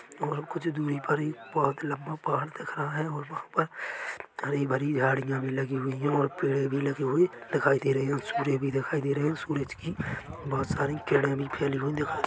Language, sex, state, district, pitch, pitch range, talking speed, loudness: Hindi, male, Chhattisgarh, Korba, 140 Hz, 135-150 Hz, 230 wpm, -29 LUFS